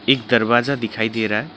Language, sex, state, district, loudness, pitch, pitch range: Hindi, male, West Bengal, Alipurduar, -19 LUFS, 115 Hz, 110-130 Hz